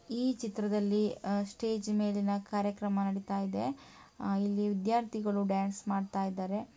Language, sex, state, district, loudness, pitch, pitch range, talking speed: Kannada, female, Karnataka, Mysore, -33 LUFS, 205 Hz, 195-215 Hz, 105 wpm